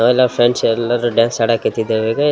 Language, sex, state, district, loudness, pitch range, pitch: Kannada, male, Karnataka, Raichur, -15 LUFS, 115-120 Hz, 115 Hz